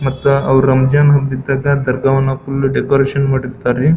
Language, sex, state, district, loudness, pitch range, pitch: Kannada, male, Karnataka, Belgaum, -14 LUFS, 135-140 Hz, 135 Hz